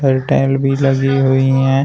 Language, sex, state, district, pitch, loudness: Hindi, male, Uttar Pradesh, Shamli, 135 Hz, -14 LUFS